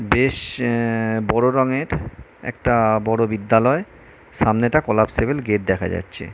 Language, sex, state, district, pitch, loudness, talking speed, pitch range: Bengali, male, West Bengal, North 24 Parganas, 115 Hz, -20 LUFS, 125 wpm, 110-125 Hz